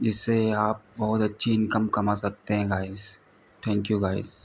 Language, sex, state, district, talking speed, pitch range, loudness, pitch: Hindi, male, Uttar Pradesh, Ghazipur, 200 wpm, 100-110 Hz, -26 LUFS, 105 Hz